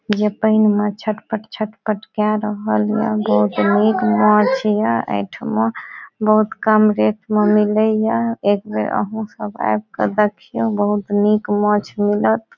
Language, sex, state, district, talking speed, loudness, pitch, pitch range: Maithili, female, Bihar, Saharsa, 150 wpm, -18 LUFS, 210 Hz, 205-215 Hz